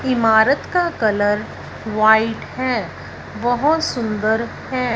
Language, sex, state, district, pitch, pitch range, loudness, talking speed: Hindi, female, Punjab, Fazilka, 230 Hz, 220-255 Hz, -18 LUFS, 95 wpm